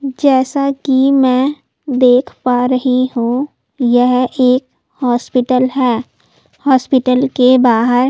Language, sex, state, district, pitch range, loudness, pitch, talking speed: Hindi, female, Delhi, New Delhi, 250-265 Hz, -13 LUFS, 255 Hz, 105 wpm